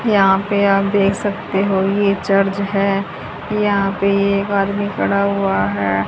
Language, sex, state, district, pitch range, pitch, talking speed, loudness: Hindi, female, Haryana, Charkhi Dadri, 195-200 Hz, 200 Hz, 160 wpm, -17 LUFS